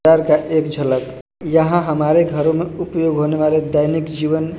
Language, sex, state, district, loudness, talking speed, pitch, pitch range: Hindi, male, Bihar, Kaimur, -17 LUFS, 170 wpm, 155 Hz, 150-160 Hz